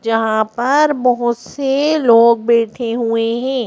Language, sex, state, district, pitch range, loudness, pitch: Hindi, female, Madhya Pradesh, Bhopal, 230-265 Hz, -15 LUFS, 235 Hz